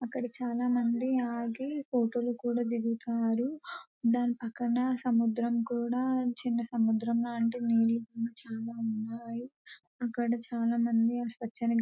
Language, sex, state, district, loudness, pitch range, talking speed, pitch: Telugu, female, Telangana, Nalgonda, -31 LUFS, 230-245 Hz, 115 wpm, 235 Hz